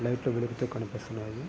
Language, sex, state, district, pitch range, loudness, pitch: Telugu, male, Andhra Pradesh, Srikakulam, 115-125 Hz, -33 LUFS, 120 Hz